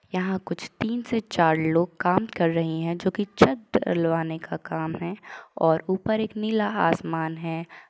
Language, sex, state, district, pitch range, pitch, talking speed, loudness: Hindi, female, Uttar Pradesh, Jalaun, 165-215 Hz, 180 Hz, 165 wpm, -25 LUFS